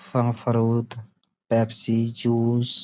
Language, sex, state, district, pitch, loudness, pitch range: Hindi, male, Uttar Pradesh, Budaun, 115 Hz, -22 LUFS, 115-120 Hz